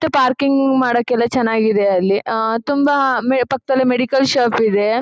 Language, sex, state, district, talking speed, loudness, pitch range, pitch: Kannada, female, Karnataka, Chamarajanagar, 130 wpm, -16 LUFS, 225-270 Hz, 250 Hz